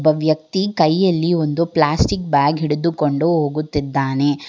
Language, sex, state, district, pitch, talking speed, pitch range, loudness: Kannada, female, Karnataka, Bangalore, 155 Hz, 105 wpm, 145-170 Hz, -18 LUFS